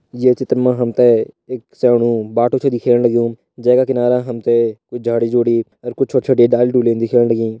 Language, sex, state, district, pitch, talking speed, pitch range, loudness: Hindi, male, Uttarakhand, Tehri Garhwal, 120 Hz, 160 wpm, 115-125 Hz, -15 LUFS